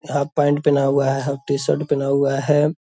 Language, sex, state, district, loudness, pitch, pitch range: Hindi, male, Bihar, Purnia, -19 LUFS, 140 Hz, 140-145 Hz